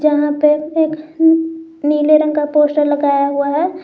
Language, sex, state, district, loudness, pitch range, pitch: Hindi, female, Jharkhand, Garhwa, -15 LUFS, 295-320 Hz, 300 Hz